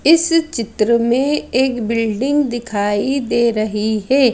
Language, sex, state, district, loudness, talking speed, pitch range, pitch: Hindi, female, Madhya Pradesh, Bhopal, -17 LUFS, 125 wpm, 220-275 Hz, 235 Hz